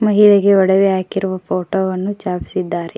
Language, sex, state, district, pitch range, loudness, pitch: Kannada, female, Karnataka, Koppal, 185-200 Hz, -15 LUFS, 190 Hz